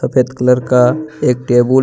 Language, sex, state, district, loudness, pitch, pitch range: Hindi, male, Jharkhand, Deoghar, -13 LUFS, 125 Hz, 125-130 Hz